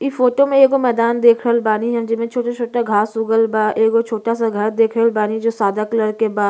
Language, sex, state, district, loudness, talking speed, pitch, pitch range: Bhojpuri, female, Uttar Pradesh, Gorakhpur, -16 LUFS, 240 wpm, 230 Hz, 220-235 Hz